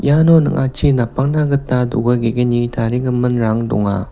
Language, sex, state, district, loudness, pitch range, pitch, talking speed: Garo, male, Meghalaya, West Garo Hills, -16 LUFS, 115-140 Hz, 125 Hz, 115 wpm